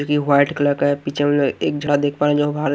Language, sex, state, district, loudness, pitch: Hindi, male, Haryana, Jhajjar, -18 LUFS, 145 Hz